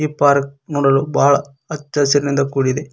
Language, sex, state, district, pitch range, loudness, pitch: Kannada, male, Karnataka, Koppal, 140-145 Hz, -16 LUFS, 140 Hz